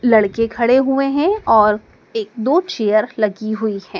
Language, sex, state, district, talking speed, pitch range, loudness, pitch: Hindi, female, Madhya Pradesh, Dhar, 165 wpm, 215-265 Hz, -17 LUFS, 225 Hz